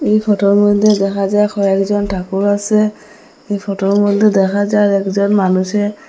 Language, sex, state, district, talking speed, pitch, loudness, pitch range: Bengali, female, Assam, Hailakandi, 150 wpm, 205 Hz, -14 LUFS, 195-210 Hz